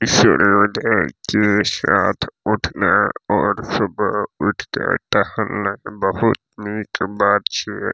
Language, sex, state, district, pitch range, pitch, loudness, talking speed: Maithili, male, Bihar, Saharsa, 100-105 Hz, 105 Hz, -18 LUFS, 105 wpm